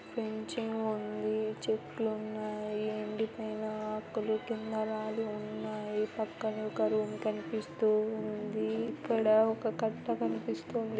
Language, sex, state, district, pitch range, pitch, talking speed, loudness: Telugu, female, Andhra Pradesh, Anantapur, 210-220 Hz, 215 Hz, 95 wpm, -34 LUFS